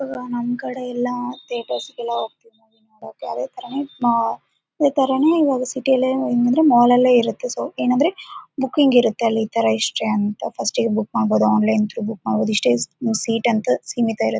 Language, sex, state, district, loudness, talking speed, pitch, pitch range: Kannada, female, Karnataka, Raichur, -19 LUFS, 155 wpm, 240 Hz, 220-265 Hz